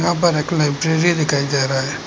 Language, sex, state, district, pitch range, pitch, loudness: Hindi, male, Assam, Hailakandi, 140-170 Hz, 150 Hz, -17 LUFS